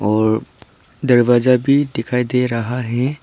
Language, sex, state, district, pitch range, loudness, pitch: Hindi, male, Arunachal Pradesh, Papum Pare, 115-125 Hz, -17 LUFS, 125 Hz